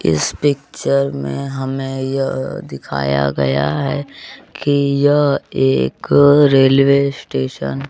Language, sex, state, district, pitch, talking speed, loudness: Hindi, male, Bihar, Kaimur, 130 Hz, 105 wpm, -16 LUFS